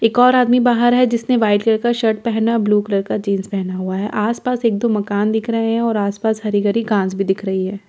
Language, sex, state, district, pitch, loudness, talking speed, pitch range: Hindi, female, Bihar, Katihar, 220 Hz, -17 LUFS, 250 wpm, 205-230 Hz